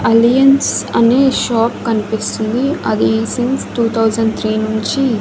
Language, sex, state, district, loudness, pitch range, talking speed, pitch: Telugu, female, Andhra Pradesh, Annamaya, -14 LUFS, 220-255 Hz, 115 wpm, 230 Hz